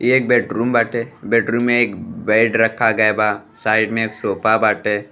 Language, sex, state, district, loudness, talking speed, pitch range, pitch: Bhojpuri, male, Uttar Pradesh, Deoria, -17 LUFS, 185 wpm, 110-120 Hz, 115 Hz